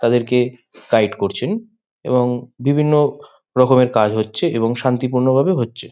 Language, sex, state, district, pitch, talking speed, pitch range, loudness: Bengali, male, West Bengal, Malda, 125 Hz, 110 wpm, 120-140 Hz, -17 LUFS